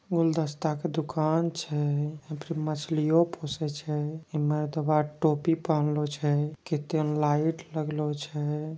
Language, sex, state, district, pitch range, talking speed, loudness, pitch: Angika, female, Bihar, Begusarai, 150-160 Hz, 125 wpm, -28 LUFS, 155 Hz